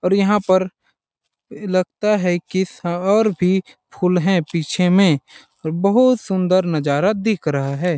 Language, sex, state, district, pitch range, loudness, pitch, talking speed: Hindi, male, Chhattisgarh, Balrampur, 175-200 Hz, -18 LUFS, 185 Hz, 150 wpm